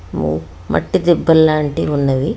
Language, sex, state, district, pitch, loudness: Telugu, female, Telangana, Hyderabad, 135 Hz, -16 LUFS